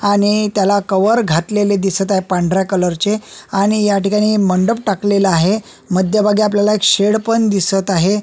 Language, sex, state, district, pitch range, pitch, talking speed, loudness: Marathi, male, Maharashtra, Solapur, 195-210 Hz, 200 Hz, 155 wpm, -15 LUFS